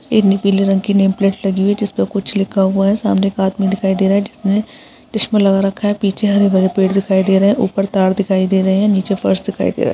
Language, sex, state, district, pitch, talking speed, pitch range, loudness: Hindi, female, Chhattisgarh, Balrampur, 195 Hz, 280 wpm, 195-200 Hz, -15 LUFS